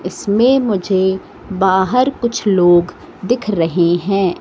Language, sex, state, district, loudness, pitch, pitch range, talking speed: Hindi, female, Madhya Pradesh, Katni, -15 LUFS, 190 Hz, 180-235 Hz, 110 wpm